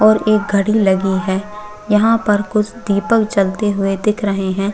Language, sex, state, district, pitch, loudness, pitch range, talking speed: Hindi, female, Chhattisgarh, Bastar, 210 Hz, -16 LUFS, 195-215 Hz, 175 wpm